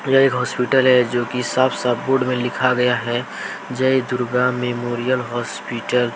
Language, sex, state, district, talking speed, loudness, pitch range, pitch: Hindi, male, Jharkhand, Deoghar, 175 wpm, -19 LUFS, 120-130 Hz, 125 Hz